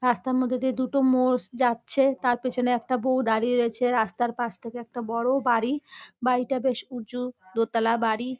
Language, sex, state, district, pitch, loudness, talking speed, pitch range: Bengali, female, West Bengal, North 24 Parganas, 245 Hz, -25 LUFS, 165 wpm, 235-255 Hz